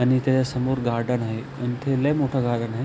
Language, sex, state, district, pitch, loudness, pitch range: Marathi, male, Maharashtra, Aurangabad, 125 Hz, -24 LUFS, 120-130 Hz